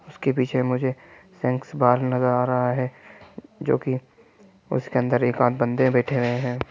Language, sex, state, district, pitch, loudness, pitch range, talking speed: Hindi, male, Jharkhand, Sahebganj, 125 Hz, -23 LUFS, 125-130 Hz, 170 wpm